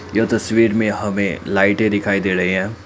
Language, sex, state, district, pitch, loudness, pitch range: Hindi, male, Assam, Kamrup Metropolitan, 100 Hz, -17 LUFS, 95-110 Hz